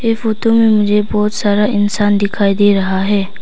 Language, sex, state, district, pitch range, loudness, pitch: Hindi, female, Arunachal Pradesh, Papum Pare, 200-215 Hz, -13 LUFS, 205 Hz